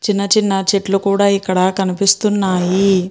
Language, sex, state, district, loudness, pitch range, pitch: Telugu, female, Andhra Pradesh, Chittoor, -15 LUFS, 190-200 Hz, 195 Hz